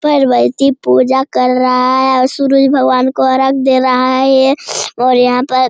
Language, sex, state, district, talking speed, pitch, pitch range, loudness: Hindi, female, Bihar, Jamui, 190 wpm, 260 Hz, 255-270 Hz, -11 LUFS